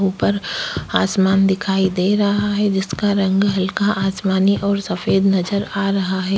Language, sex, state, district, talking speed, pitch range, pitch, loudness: Hindi, female, Goa, North and South Goa, 150 wpm, 190-200 Hz, 195 Hz, -18 LUFS